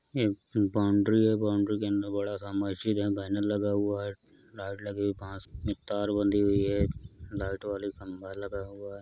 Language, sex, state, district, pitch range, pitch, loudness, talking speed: Hindi, male, Uttar Pradesh, Hamirpur, 100-105 Hz, 100 Hz, -30 LUFS, 205 wpm